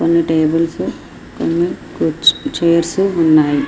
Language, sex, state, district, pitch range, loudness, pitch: Telugu, female, Andhra Pradesh, Srikakulam, 160-170 Hz, -15 LUFS, 165 Hz